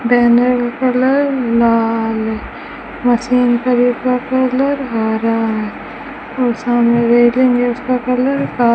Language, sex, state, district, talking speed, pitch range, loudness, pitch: Hindi, female, Rajasthan, Bikaner, 110 wpm, 235-255 Hz, -14 LUFS, 245 Hz